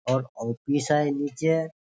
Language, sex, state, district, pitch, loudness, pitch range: Hindi, male, Bihar, Sitamarhi, 145 Hz, -26 LUFS, 130-150 Hz